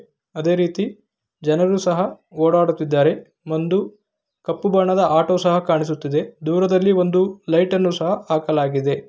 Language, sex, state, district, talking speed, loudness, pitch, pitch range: Kannada, male, Karnataka, Gulbarga, 110 wpm, -19 LUFS, 175 Hz, 160-190 Hz